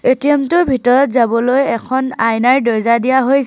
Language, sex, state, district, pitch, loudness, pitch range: Assamese, female, Assam, Sonitpur, 260 Hz, -13 LUFS, 235-270 Hz